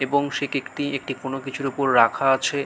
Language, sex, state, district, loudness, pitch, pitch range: Bengali, male, West Bengal, Malda, -23 LUFS, 135 Hz, 135-140 Hz